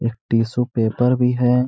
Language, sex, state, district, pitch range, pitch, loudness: Hindi, male, Bihar, Gaya, 115-125 Hz, 125 Hz, -19 LUFS